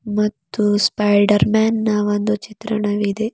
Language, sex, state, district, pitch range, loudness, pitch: Kannada, female, Karnataka, Bidar, 205-215 Hz, -18 LUFS, 210 Hz